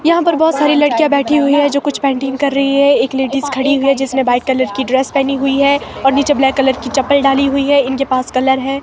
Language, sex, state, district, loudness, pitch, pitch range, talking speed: Hindi, female, Himachal Pradesh, Shimla, -13 LUFS, 275 Hz, 265-285 Hz, 270 wpm